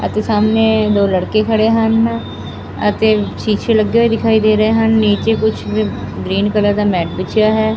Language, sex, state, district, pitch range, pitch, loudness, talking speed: Punjabi, female, Punjab, Fazilka, 205-220 Hz, 215 Hz, -14 LUFS, 170 wpm